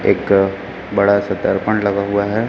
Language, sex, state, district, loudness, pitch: Hindi, male, Chhattisgarh, Raipur, -16 LUFS, 100 Hz